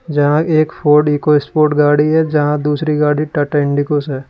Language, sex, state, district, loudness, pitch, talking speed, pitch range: Hindi, male, Uttar Pradesh, Lalitpur, -14 LUFS, 150 Hz, 165 wpm, 145-150 Hz